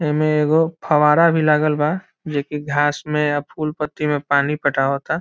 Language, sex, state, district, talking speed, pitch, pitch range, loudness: Bhojpuri, male, Bihar, Saran, 185 wpm, 150 Hz, 145-155 Hz, -19 LUFS